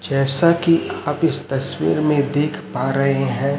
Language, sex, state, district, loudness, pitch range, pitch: Hindi, male, Chhattisgarh, Raipur, -17 LUFS, 135-155 Hz, 145 Hz